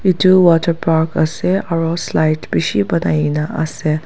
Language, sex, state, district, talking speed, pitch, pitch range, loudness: Nagamese, female, Nagaland, Dimapur, 145 wpm, 165 Hz, 155-175 Hz, -15 LUFS